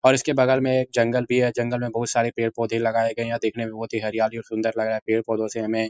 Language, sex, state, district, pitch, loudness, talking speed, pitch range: Hindi, male, Uttar Pradesh, Etah, 115 Hz, -23 LUFS, 325 wpm, 110-120 Hz